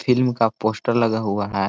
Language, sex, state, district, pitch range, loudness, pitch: Hindi, male, Chhattisgarh, Korba, 100-120 Hz, -21 LUFS, 110 Hz